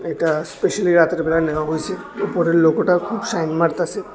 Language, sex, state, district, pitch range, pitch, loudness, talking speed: Bengali, male, Tripura, West Tripura, 160-180 Hz, 170 Hz, -19 LUFS, 160 wpm